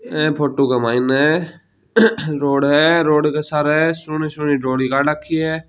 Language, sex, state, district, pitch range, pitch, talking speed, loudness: Hindi, male, Rajasthan, Churu, 140-160 Hz, 150 Hz, 160 wpm, -17 LUFS